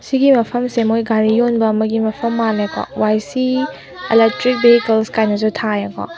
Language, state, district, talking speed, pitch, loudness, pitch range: Manipuri, Manipur, Imphal West, 135 wpm, 225 Hz, -16 LUFS, 220-240 Hz